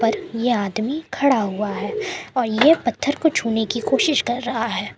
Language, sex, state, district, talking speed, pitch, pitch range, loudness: Hindi, female, Jharkhand, Palamu, 190 wpm, 240 Hz, 220-285 Hz, -20 LUFS